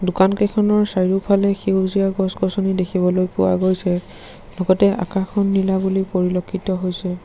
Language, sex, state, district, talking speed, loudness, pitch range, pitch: Assamese, male, Assam, Sonitpur, 115 wpm, -19 LUFS, 185-195 Hz, 190 Hz